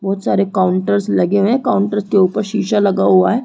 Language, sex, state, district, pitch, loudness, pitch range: Hindi, female, Chhattisgarh, Rajnandgaon, 195 Hz, -15 LUFS, 185-210 Hz